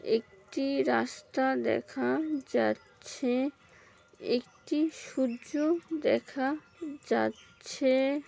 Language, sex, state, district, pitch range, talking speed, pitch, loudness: Bengali, female, West Bengal, Malda, 225-300 Hz, 60 wpm, 265 Hz, -31 LUFS